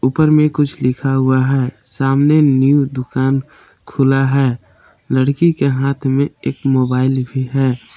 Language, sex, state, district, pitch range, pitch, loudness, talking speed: Hindi, male, Jharkhand, Palamu, 130-140 Hz, 135 Hz, -15 LUFS, 145 wpm